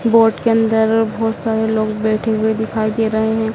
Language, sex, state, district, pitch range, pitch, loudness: Hindi, female, Madhya Pradesh, Dhar, 220-225 Hz, 220 Hz, -16 LUFS